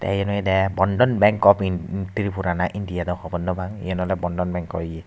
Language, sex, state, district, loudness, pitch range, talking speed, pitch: Chakma, male, Tripura, Unakoti, -22 LUFS, 90-100 Hz, 175 wpm, 95 Hz